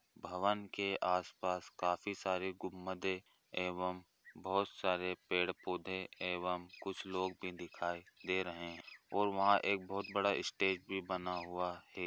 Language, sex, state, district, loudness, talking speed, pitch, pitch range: Hindi, male, Chhattisgarh, Bastar, -39 LUFS, 150 wpm, 90 Hz, 90-95 Hz